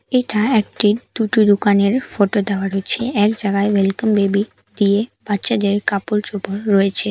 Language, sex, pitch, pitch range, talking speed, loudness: Bengali, female, 205 Hz, 200-215 Hz, 135 wpm, -17 LUFS